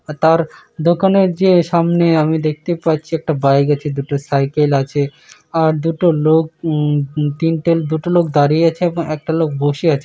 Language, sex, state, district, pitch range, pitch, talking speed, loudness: Bengali, male, West Bengal, Malda, 145-170 Hz, 160 Hz, 175 wpm, -16 LUFS